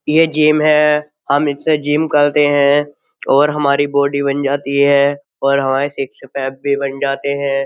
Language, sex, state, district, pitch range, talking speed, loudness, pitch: Hindi, male, Uttar Pradesh, Jyotiba Phule Nagar, 140-150 Hz, 170 wpm, -15 LUFS, 140 Hz